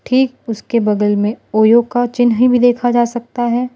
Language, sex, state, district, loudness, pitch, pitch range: Hindi, female, Gujarat, Valsad, -14 LUFS, 240 Hz, 225-245 Hz